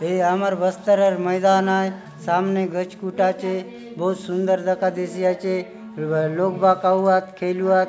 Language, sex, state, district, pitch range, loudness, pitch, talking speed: Halbi, male, Chhattisgarh, Bastar, 180-190 Hz, -21 LUFS, 185 Hz, 150 wpm